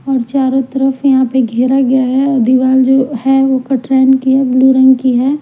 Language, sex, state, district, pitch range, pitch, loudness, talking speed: Hindi, female, Bihar, Patna, 260-270 Hz, 265 Hz, -11 LUFS, 220 wpm